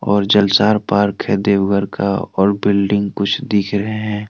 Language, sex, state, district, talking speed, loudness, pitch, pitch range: Hindi, male, Jharkhand, Deoghar, 170 wpm, -16 LUFS, 100 Hz, 100-105 Hz